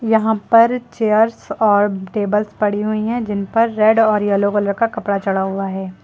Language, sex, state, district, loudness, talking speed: Hindi, female, Uttar Pradesh, Lucknow, -17 LUFS, 190 wpm